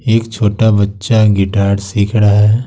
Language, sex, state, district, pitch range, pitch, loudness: Hindi, male, Bihar, Patna, 100-110 Hz, 105 Hz, -12 LUFS